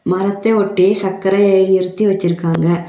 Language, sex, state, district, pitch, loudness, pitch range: Tamil, female, Tamil Nadu, Nilgiris, 190 Hz, -14 LUFS, 180-200 Hz